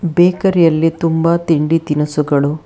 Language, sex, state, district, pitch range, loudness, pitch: Kannada, female, Karnataka, Bangalore, 150-170 Hz, -14 LUFS, 165 Hz